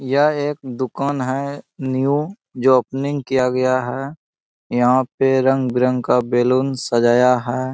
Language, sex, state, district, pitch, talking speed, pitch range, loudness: Hindi, male, Bihar, Bhagalpur, 130 Hz, 130 wpm, 125-135 Hz, -18 LUFS